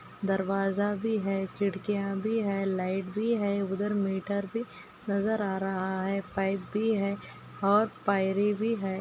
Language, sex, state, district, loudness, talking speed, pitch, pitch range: Hindi, female, Goa, North and South Goa, -30 LUFS, 155 wpm, 200 Hz, 195-210 Hz